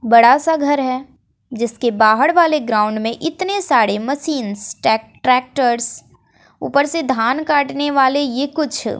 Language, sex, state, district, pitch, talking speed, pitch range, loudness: Hindi, female, Bihar, West Champaran, 265 Hz, 135 wpm, 230-290 Hz, -16 LUFS